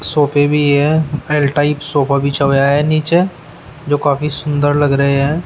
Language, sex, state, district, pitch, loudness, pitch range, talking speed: Hindi, male, Uttar Pradesh, Shamli, 145 Hz, -14 LUFS, 140-150 Hz, 175 wpm